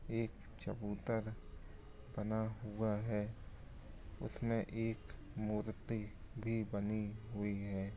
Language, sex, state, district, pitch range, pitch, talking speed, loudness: Hindi, male, Andhra Pradesh, Anantapur, 100-110 Hz, 105 Hz, 105 wpm, -42 LUFS